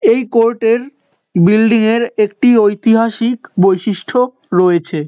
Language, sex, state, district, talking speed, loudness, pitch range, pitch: Bengali, male, West Bengal, North 24 Parganas, 105 wpm, -13 LUFS, 195-240 Hz, 225 Hz